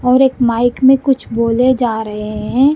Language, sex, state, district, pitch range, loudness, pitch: Hindi, female, Punjab, Kapurthala, 230-265 Hz, -14 LUFS, 245 Hz